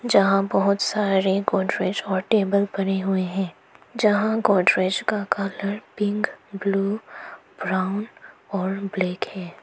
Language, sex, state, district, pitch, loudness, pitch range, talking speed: Hindi, female, Arunachal Pradesh, Papum Pare, 195 Hz, -23 LUFS, 190-205 Hz, 120 wpm